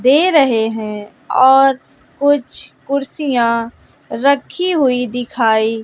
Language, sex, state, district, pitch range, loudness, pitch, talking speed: Hindi, female, Bihar, West Champaran, 230-280 Hz, -15 LUFS, 260 Hz, 90 wpm